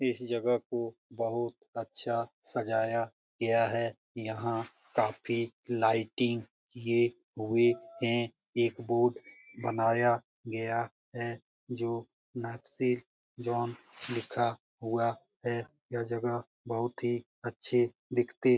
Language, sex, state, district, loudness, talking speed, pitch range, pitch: Hindi, male, Bihar, Lakhisarai, -33 LUFS, 100 wpm, 115-120 Hz, 120 Hz